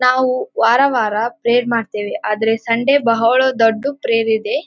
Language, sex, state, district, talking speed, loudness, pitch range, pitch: Kannada, female, Karnataka, Dharwad, 140 wpm, -16 LUFS, 225-275 Hz, 240 Hz